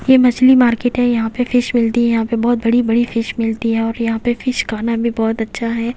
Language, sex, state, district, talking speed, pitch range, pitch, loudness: Hindi, female, Haryana, Jhajjar, 250 wpm, 230-245 Hz, 235 Hz, -16 LUFS